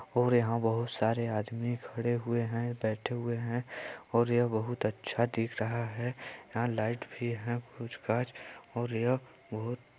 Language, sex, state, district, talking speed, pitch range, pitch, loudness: Hindi, male, Chhattisgarh, Balrampur, 160 wpm, 115-120 Hz, 120 Hz, -33 LUFS